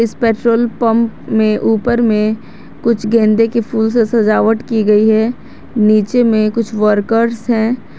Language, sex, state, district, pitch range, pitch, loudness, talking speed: Hindi, female, Jharkhand, Garhwa, 215-230 Hz, 225 Hz, -13 LUFS, 150 wpm